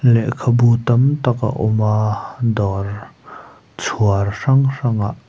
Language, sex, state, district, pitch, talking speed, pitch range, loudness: Mizo, male, Mizoram, Aizawl, 115 Hz, 125 wpm, 105-125 Hz, -17 LUFS